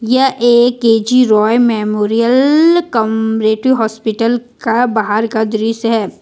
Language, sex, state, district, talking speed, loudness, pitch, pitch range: Hindi, female, Jharkhand, Ranchi, 105 wpm, -12 LUFS, 225 Hz, 220-245 Hz